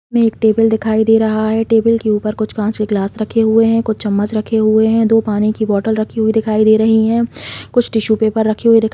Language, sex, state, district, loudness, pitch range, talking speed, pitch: Hindi, female, Chhattisgarh, Balrampur, -14 LUFS, 215-225 Hz, 270 wpm, 220 Hz